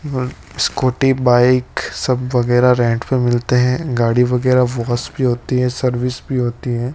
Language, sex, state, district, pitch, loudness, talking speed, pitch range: Hindi, male, Rajasthan, Bikaner, 125 Hz, -16 LUFS, 165 wpm, 120-130 Hz